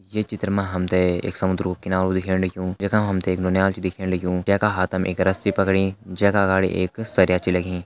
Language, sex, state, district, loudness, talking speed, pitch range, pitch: Hindi, male, Uttarakhand, Uttarkashi, -22 LUFS, 245 wpm, 90-100 Hz, 95 Hz